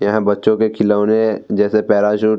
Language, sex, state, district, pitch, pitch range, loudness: Hindi, male, Bihar, Vaishali, 105 Hz, 105-110 Hz, -15 LUFS